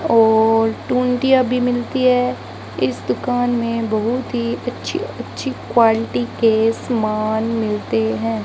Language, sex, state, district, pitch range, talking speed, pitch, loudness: Hindi, female, Rajasthan, Bikaner, 210-245 Hz, 120 wpm, 225 Hz, -18 LUFS